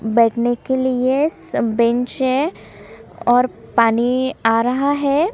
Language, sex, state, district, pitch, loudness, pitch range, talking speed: Hindi, female, Chhattisgarh, Kabirdham, 250 Hz, -18 LUFS, 235-270 Hz, 125 wpm